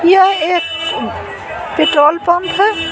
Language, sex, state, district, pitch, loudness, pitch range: Hindi, female, Bihar, Patna, 345 Hz, -13 LUFS, 320-380 Hz